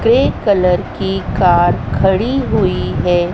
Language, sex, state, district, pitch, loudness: Hindi, female, Madhya Pradesh, Dhar, 175 Hz, -14 LUFS